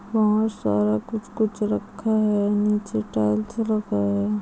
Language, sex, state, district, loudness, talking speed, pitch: Hindi, female, Andhra Pradesh, Chittoor, -23 LUFS, 135 wpm, 210 Hz